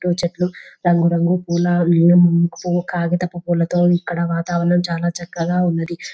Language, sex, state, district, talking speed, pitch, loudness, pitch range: Telugu, female, Telangana, Nalgonda, 125 wpm, 175 Hz, -18 LUFS, 170-175 Hz